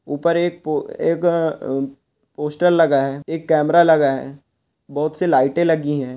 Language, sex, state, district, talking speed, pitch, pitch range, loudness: Hindi, male, Bihar, Bhagalpur, 165 wpm, 150 Hz, 140-165 Hz, -18 LUFS